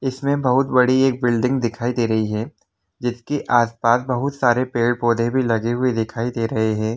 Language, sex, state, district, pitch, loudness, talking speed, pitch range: Hindi, male, Jharkhand, Jamtara, 120 Hz, -20 LUFS, 225 wpm, 115-130 Hz